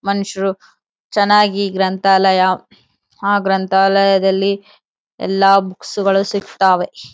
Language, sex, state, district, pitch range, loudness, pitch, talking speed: Kannada, female, Karnataka, Bellary, 190-200 Hz, -15 LUFS, 195 Hz, 75 wpm